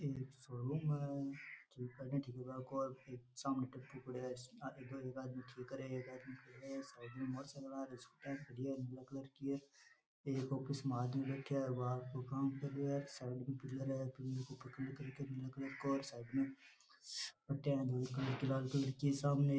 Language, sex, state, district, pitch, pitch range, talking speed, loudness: Rajasthani, male, Rajasthan, Nagaur, 135 Hz, 130-135 Hz, 155 wpm, -44 LUFS